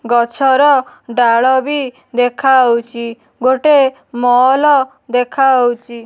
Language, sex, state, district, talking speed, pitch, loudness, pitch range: Odia, female, Odisha, Nuapada, 80 wpm, 255 Hz, -13 LUFS, 240-270 Hz